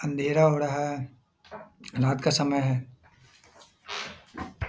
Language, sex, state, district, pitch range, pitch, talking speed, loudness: Hindi, male, Bihar, Saharsa, 130-145 Hz, 140 Hz, 100 wpm, -27 LUFS